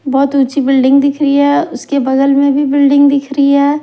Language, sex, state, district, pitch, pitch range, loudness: Hindi, female, Bihar, Kaimur, 280 Hz, 275-285 Hz, -11 LUFS